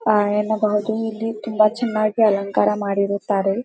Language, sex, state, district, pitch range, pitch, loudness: Kannada, female, Karnataka, Dharwad, 205-220 Hz, 215 Hz, -20 LUFS